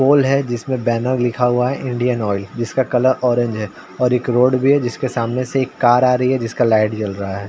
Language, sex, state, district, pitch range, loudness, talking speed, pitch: Hindi, male, Uttar Pradesh, Ghazipur, 115-130 Hz, -17 LUFS, 255 wpm, 125 Hz